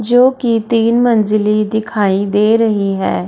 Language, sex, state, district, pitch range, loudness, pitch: Hindi, female, Bihar, Darbhanga, 210-230 Hz, -13 LUFS, 220 Hz